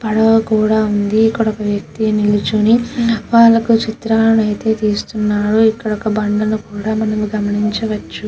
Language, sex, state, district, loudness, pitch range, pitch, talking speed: Telugu, female, Andhra Pradesh, Krishna, -15 LUFS, 210-225 Hz, 215 Hz, 95 wpm